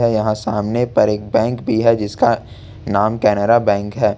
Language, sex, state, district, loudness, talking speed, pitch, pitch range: Hindi, male, Jharkhand, Ranchi, -17 LUFS, 170 wpm, 110 Hz, 105-115 Hz